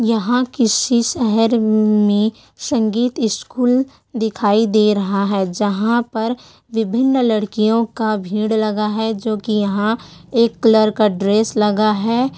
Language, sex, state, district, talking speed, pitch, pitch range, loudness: Hindi, female, Chhattisgarh, Korba, 130 wpm, 220 Hz, 210-235 Hz, -17 LUFS